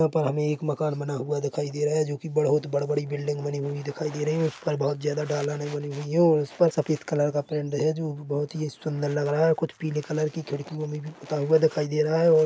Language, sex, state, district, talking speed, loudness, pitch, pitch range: Hindi, male, Chhattisgarh, Korba, 295 wpm, -26 LUFS, 150 Hz, 145-155 Hz